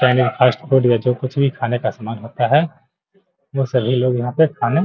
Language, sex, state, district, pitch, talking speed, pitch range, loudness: Hindi, male, Bihar, Gaya, 130 Hz, 220 wpm, 120-145 Hz, -18 LUFS